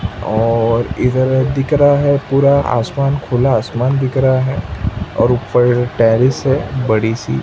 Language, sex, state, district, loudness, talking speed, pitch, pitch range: Hindi, male, Maharashtra, Mumbai Suburban, -14 LUFS, 145 wpm, 125 Hz, 115-135 Hz